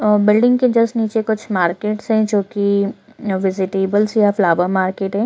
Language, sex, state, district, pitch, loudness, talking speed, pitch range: Hindi, female, Chhattisgarh, Korba, 210 Hz, -17 LUFS, 170 wpm, 195-220 Hz